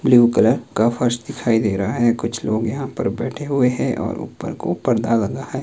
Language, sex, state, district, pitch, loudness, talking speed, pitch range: Hindi, male, Himachal Pradesh, Shimla, 120 Hz, -20 LUFS, 225 wpm, 115-125 Hz